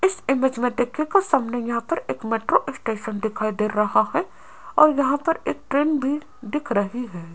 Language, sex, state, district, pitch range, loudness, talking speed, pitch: Hindi, female, Rajasthan, Jaipur, 220-300 Hz, -23 LUFS, 190 wpm, 245 Hz